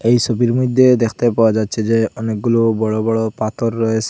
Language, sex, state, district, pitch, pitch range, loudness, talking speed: Bengali, male, Assam, Hailakandi, 115 Hz, 110-120 Hz, -16 LUFS, 175 wpm